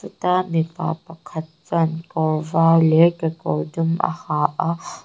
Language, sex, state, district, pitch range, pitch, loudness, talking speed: Mizo, female, Mizoram, Aizawl, 160-165 Hz, 165 Hz, -20 LUFS, 130 wpm